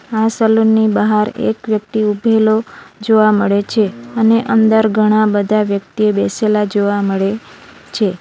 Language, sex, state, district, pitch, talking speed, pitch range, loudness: Gujarati, female, Gujarat, Valsad, 215 Hz, 130 wpm, 205-220 Hz, -14 LUFS